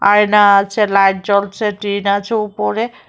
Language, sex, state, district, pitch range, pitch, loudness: Bengali, female, Tripura, West Tripura, 200-210 Hz, 200 Hz, -14 LUFS